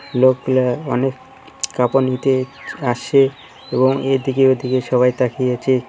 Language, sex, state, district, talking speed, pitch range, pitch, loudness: Bengali, male, West Bengal, Cooch Behar, 110 wpm, 125-135 Hz, 130 Hz, -18 LUFS